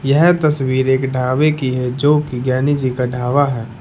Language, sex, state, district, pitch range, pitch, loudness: Hindi, male, Uttar Pradesh, Lucknow, 125-145 Hz, 130 Hz, -16 LUFS